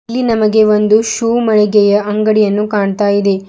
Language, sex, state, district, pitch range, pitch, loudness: Kannada, female, Karnataka, Bidar, 205-220 Hz, 210 Hz, -12 LUFS